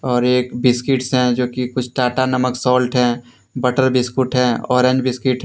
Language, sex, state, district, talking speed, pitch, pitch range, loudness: Hindi, male, Jharkhand, Deoghar, 200 wpm, 125 Hz, 125-130 Hz, -17 LUFS